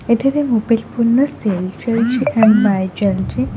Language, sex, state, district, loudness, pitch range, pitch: Odia, female, Odisha, Khordha, -16 LUFS, 195-235 Hz, 230 Hz